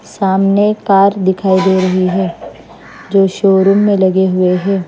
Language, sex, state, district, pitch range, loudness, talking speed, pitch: Hindi, female, Maharashtra, Mumbai Suburban, 190-195 Hz, -12 LUFS, 145 wpm, 190 Hz